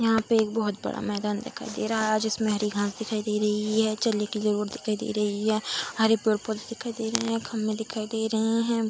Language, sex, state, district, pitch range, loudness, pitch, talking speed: Hindi, female, Bihar, Samastipur, 210-225 Hz, -27 LUFS, 220 Hz, 245 wpm